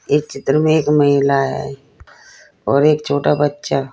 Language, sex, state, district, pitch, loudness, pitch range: Hindi, female, Uttar Pradesh, Saharanpur, 145 Hz, -16 LUFS, 140-150 Hz